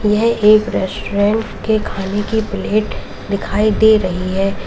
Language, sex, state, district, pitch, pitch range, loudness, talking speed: Hindi, female, Uttar Pradesh, Lalitpur, 210 Hz, 200-220 Hz, -16 LUFS, 140 wpm